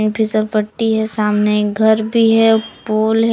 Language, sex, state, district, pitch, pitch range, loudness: Hindi, female, Jharkhand, Palamu, 220 Hz, 215-225 Hz, -15 LUFS